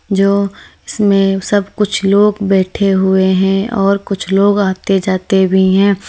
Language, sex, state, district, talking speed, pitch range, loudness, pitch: Hindi, female, Uttar Pradesh, Lalitpur, 150 wpm, 190-200 Hz, -13 LUFS, 195 Hz